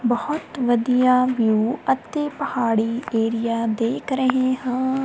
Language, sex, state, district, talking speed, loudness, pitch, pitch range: Punjabi, female, Punjab, Kapurthala, 105 wpm, -21 LUFS, 250 Hz, 230-265 Hz